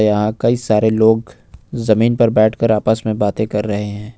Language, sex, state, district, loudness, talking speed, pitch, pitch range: Hindi, male, Jharkhand, Ranchi, -16 LUFS, 185 wpm, 110 Hz, 105-115 Hz